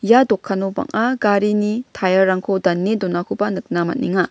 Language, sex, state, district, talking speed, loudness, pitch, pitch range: Garo, female, Meghalaya, West Garo Hills, 125 wpm, -18 LUFS, 200 Hz, 185-215 Hz